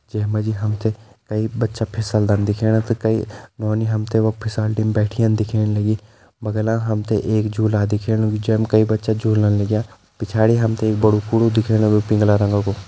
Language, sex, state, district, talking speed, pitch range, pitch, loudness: Kumaoni, male, Uttarakhand, Tehri Garhwal, 170 wpm, 105-110 Hz, 110 Hz, -19 LUFS